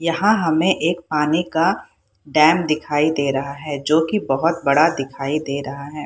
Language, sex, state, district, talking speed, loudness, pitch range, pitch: Hindi, female, Bihar, Purnia, 190 wpm, -19 LUFS, 140-165 Hz, 155 Hz